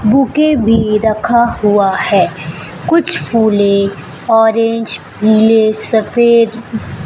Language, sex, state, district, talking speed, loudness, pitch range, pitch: Hindi, female, Chhattisgarh, Raipur, 85 wpm, -12 LUFS, 215-235 Hz, 225 Hz